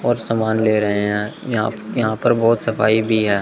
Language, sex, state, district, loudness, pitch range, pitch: Hindi, male, Chandigarh, Chandigarh, -18 LUFS, 105-115 Hz, 110 Hz